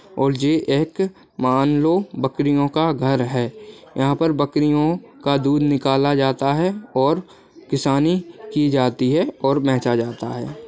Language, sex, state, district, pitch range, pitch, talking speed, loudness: Hindi, male, Bihar, Bhagalpur, 135-160 Hz, 145 Hz, 145 wpm, -20 LUFS